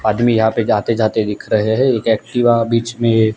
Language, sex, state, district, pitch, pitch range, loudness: Hindi, male, Gujarat, Gandhinagar, 115 Hz, 110-115 Hz, -16 LUFS